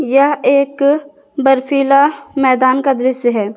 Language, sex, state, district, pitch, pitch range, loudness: Hindi, female, Jharkhand, Garhwa, 275 Hz, 260-285 Hz, -13 LUFS